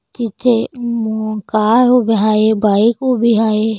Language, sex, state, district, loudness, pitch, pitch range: Marathi, female, Maharashtra, Solapur, -14 LUFS, 225 Hz, 215-235 Hz